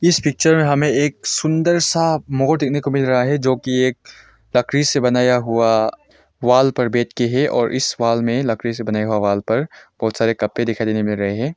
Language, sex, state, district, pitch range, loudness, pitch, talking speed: Hindi, male, Arunachal Pradesh, Longding, 115-145 Hz, -18 LUFS, 125 Hz, 225 wpm